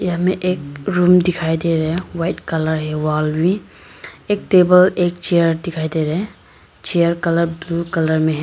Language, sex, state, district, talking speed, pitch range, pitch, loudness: Hindi, female, Arunachal Pradesh, Papum Pare, 180 wpm, 160-180 Hz, 170 Hz, -17 LUFS